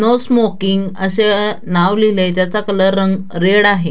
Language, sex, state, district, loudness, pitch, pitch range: Marathi, female, Maharashtra, Dhule, -14 LUFS, 195 Hz, 190-210 Hz